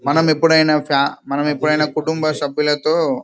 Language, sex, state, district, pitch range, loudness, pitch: Telugu, male, Telangana, Karimnagar, 150-160 Hz, -17 LUFS, 155 Hz